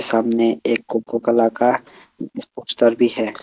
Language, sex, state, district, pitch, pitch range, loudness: Hindi, male, Assam, Kamrup Metropolitan, 115 Hz, 115-120 Hz, -18 LUFS